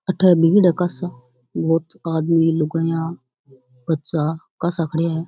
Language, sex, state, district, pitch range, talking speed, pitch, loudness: Rajasthani, female, Rajasthan, Churu, 155-170 Hz, 125 wpm, 165 Hz, -19 LUFS